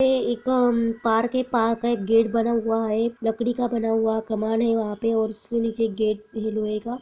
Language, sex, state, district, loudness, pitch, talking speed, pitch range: Hindi, female, Chhattisgarh, Bilaspur, -23 LUFS, 225 Hz, 230 wpm, 220-235 Hz